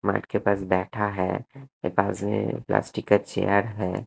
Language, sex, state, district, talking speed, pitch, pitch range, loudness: Hindi, male, Punjab, Kapurthala, 175 wpm, 100 Hz, 95-105 Hz, -26 LUFS